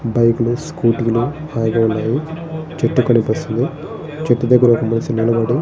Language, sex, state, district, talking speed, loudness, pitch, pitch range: Telugu, male, Andhra Pradesh, Srikakulam, 150 wpm, -17 LUFS, 120 Hz, 115-150 Hz